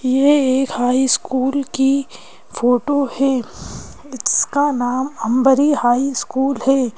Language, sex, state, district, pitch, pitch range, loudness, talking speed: Hindi, female, Madhya Pradesh, Bhopal, 265 Hz, 250-280 Hz, -17 LUFS, 105 wpm